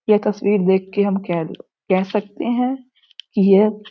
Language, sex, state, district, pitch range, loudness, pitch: Hindi, male, Uttar Pradesh, Gorakhpur, 195-235 Hz, -19 LUFS, 205 Hz